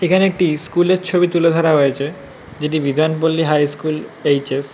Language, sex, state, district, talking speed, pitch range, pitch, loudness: Bengali, male, West Bengal, North 24 Parganas, 190 wpm, 145-175 Hz, 155 Hz, -17 LUFS